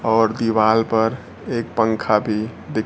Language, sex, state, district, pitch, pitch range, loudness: Hindi, male, Bihar, Kaimur, 110 Hz, 110-115 Hz, -19 LUFS